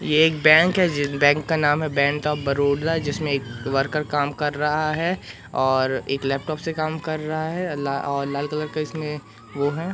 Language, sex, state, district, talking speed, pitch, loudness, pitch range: Hindi, male, Madhya Pradesh, Katni, 215 wpm, 150 Hz, -22 LUFS, 140-155 Hz